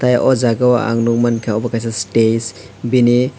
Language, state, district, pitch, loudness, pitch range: Kokborok, Tripura, West Tripura, 115 Hz, -15 LUFS, 115-125 Hz